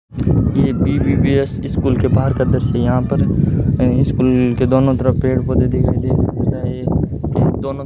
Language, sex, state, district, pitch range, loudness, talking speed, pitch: Hindi, male, Rajasthan, Bikaner, 125-130 Hz, -16 LUFS, 160 wpm, 130 Hz